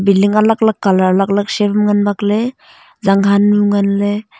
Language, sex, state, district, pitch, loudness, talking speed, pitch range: Wancho, female, Arunachal Pradesh, Longding, 205 Hz, -14 LUFS, 205 wpm, 200-210 Hz